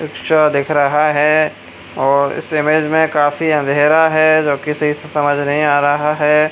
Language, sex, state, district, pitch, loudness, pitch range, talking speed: Hindi, male, Bihar, Supaul, 150 Hz, -14 LUFS, 145-155 Hz, 175 wpm